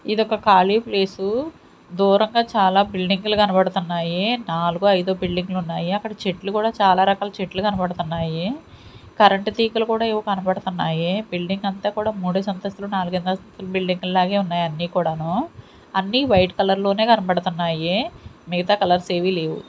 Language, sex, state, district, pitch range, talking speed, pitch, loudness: Telugu, female, Andhra Pradesh, Sri Satya Sai, 180-210 Hz, 135 wpm, 190 Hz, -21 LUFS